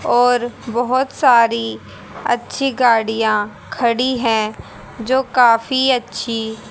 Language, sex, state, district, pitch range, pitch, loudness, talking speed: Hindi, female, Haryana, Rohtak, 220-255 Hz, 235 Hz, -17 LUFS, 90 wpm